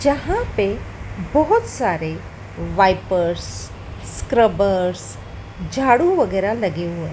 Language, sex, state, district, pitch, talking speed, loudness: Hindi, female, Madhya Pradesh, Dhar, 180 Hz, 85 wpm, -19 LUFS